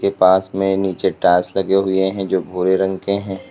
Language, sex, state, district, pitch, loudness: Hindi, male, Uttar Pradesh, Lalitpur, 95 Hz, -17 LUFS